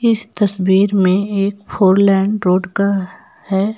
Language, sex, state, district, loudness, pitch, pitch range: Hindi, female, Jharkhand, Ranchi, -15 LUFS, 200 Hz, 190-205 Hz